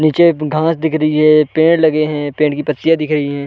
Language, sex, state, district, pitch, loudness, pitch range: Hindi, male, Uttar Pradesh, Varanasi, 155 Hz, -13 LUFS, 150-160 Hz